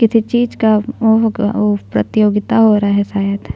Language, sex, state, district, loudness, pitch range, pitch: Hindi, female, Chhattisgarh, Jashpur, -14 LUFS, 205-225 Hz, 215 Hz